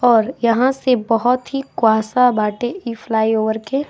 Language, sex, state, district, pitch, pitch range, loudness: Bhojpuri, female, Bihar, East Champaran, 235 Hz, 220-255 Hz, -17 LUFS